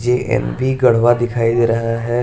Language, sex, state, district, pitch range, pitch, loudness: Hindi, male, Jharkhand, Garhwa, 115-125 Hz, 120 Hz, -16 LUFS